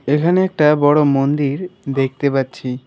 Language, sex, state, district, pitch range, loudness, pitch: Bengali, male, West Bengal, Alipurduar, 135-150 Hz, -16 LUFS, 145 Hz